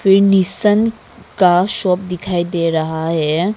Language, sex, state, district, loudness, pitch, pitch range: Hindi, female, Arunachal Pradesh, Papum Pare, -15 LUFS, 180 Hz, 170-195 Hz